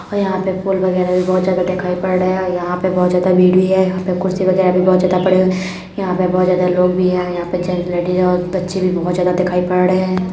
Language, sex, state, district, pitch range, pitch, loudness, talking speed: Hindi, female, Uttar Pradesh, Jalaun, 180-185 Hz, 185 Hz, -15 LUFS, 290 wpm